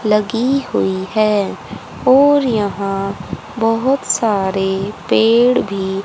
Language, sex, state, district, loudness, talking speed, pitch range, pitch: Hindi, female, Haryana, Charkhi Dadri, -16 LUFS, 100 wpm, 195-240 Hz, 210 Hz